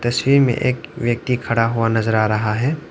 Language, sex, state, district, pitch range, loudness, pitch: Hindi, male, Arunachal Pradesh, Lower Dibang Valley, 115-130 Hz, -18 LUFS, 120 Hz